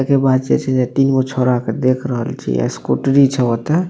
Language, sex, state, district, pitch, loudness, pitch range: Maithili, male, Bihar, Madhepura, 130 Hz, -16 LUFS, 120-135 Hz